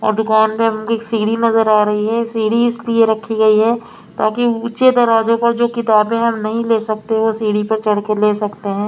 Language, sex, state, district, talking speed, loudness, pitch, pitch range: Hindi, female, Maharashtra, Mumbai Suburban, 215 wpm, -15 LUFS, 225 Hz, 215-230 Hz